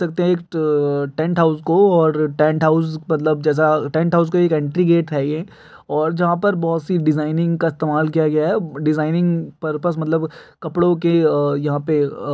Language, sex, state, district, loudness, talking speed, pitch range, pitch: Hindi, male, Uttar Pradesh, Gorakhpur, -18 LUFS, 185 wpm, 155-170 Hz, 160 Hz